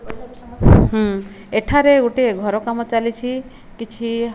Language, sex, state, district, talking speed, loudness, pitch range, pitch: Odia, female, Odisha, Malkangiri, 110 wpm, -17 LUFS, 215-250 Hz, 230 Hz